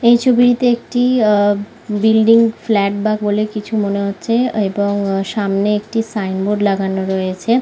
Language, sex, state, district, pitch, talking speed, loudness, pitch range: Bengali, female, West Bengal, Malda, 210 Hz, 135 wpm, -16 LUFS, 200-230 Hz